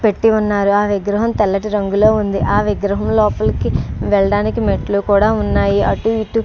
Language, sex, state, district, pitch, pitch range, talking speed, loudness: Telugu, female, Andhra Pradesh, Srikakulam, 205 Hz, 200-215 Hz, 150 wpm, -15 LUFS